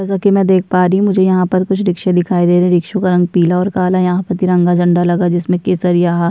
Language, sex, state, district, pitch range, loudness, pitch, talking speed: Hindi, female, Uttarakhand, Tehri Garhwal, 175-185 Hz, -13 LUFS, 180 Hz, 295 wpm